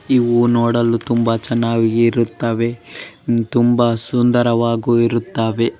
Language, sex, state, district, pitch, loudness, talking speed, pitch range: Kannada, male, Karnataka, Bellary, 115 Hz, -16 LUFS, 85 wpm, 115-120 Hz